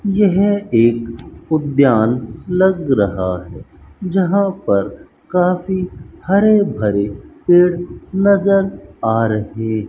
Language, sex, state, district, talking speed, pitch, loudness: Hindi, male, Rajasthan, Bikaner, 95 wpm, 140 Hz, -16 LUFS